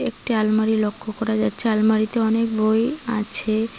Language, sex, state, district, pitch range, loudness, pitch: Bengali, female, West Bengal, Cooch Behar, 215-225 Hz, -20 LUFS, 220 Hz